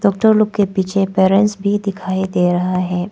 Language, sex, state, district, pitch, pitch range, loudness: Hindi, female, Arunachal Pradesh, Papum Pare, 190 Hz, 185-205 Hz, -16 LUFS